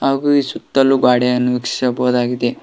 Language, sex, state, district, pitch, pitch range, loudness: Kannada, male, Karnataka, Koppal, 125 Hz, 125-135 Hz, -16 LUFS